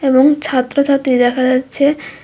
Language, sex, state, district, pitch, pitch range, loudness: Bengali, female, Tripura, West Tripura, 270 Hz, 255-280 Hz, -14 LUFS